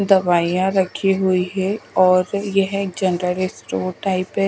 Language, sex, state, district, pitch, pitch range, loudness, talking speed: Hindi, female, Odisha, Khordha, 185 Hz, 180-195 Hz, -19 LUFS, 145 wpm